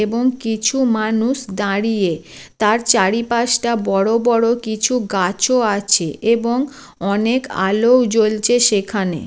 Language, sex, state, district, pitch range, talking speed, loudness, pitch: Bengali, female, West Bengal, Jalpaiguri, 200-240 Hz, 105 wpm, -17 LUFS, 225 Hz